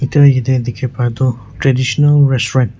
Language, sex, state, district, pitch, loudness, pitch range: Nagamese, male, Nagaland, Kohima, 130 Hz, -13 LUFS, 120-135 Hz